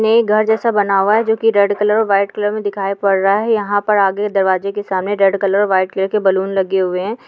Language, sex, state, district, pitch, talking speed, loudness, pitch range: Hindi, female, Uttar Pradesh, Muzaffarnagar, 200 Hz, 295 wpm, -15 LUFS, 195-210 Hz